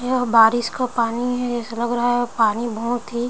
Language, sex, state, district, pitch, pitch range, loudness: Hindi, female, Chhattisgarh, Bilaspur, 240 Hz, 230-245 Hz, -20 LUFS